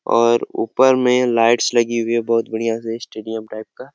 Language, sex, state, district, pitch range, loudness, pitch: Hindi, male, Jharkhand, Jamtara, 115-120 Hz, -18 LUFS, 115 Hz